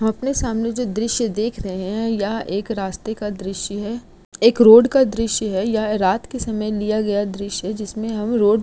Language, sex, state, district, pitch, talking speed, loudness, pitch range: Hindi, female, Uttar Pradesh, Gorakhpur, 215 Hz, 210 wpm, -19 LUFS, 200-230 Hz